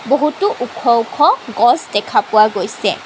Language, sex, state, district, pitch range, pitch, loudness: Assamese, female, Assam, Kamrup Metropolitan, 230-300 Hz, 280 Hz, -15 LUFS